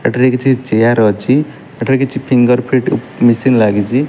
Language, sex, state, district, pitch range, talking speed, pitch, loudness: Odia, male, Odisha, Malkangiri, 115-135 Hz, 145 wpm, 125 Hz, -13 LUFS